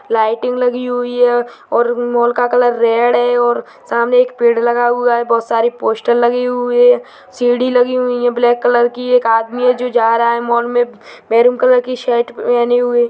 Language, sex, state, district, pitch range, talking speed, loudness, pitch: Hindi, female, Chhattisgarh, Bastar, 235-245 Hz, 210 wpm, -14 LUFS, 240 Hz